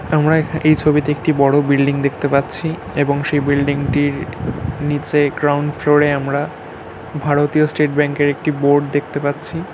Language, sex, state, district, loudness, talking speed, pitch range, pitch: Bengali, male, West Bengal, North 24 Parganas, -17 LUFS, 155 wpm, 140-150 Hz, 145 Hz